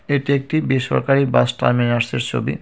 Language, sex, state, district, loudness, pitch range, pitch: Bengali, male, West Bengal, Cooch Behar, -18 LUFS, 120-140 Hz, 135 Hz